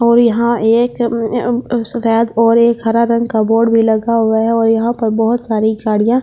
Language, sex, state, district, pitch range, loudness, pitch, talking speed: Hindi, female, Delhi, New Delhi, 225-235 Hz, -13 LUFS, 230 Hz, 195 wpm